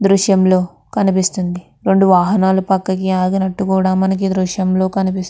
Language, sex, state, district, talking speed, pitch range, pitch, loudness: Telugu, female, Andhra Pradesh, Krishna, 135 wpm, 185-195 Hz, 190 Hz, -15 LUFS